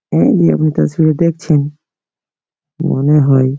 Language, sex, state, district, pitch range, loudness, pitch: Bengali, male, West Bengal, Malda, 95-155 Hz, -13 LUFS, 140 Hz